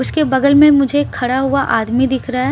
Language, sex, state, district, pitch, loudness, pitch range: Hindi, female, Bihar, Patna, 270 Hz, -14 LUFS, 255-285 Hz